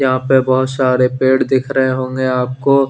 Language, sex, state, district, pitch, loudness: Hindi, male, Chandigarh, Chandigarh, 130 Hz, -15 LUFS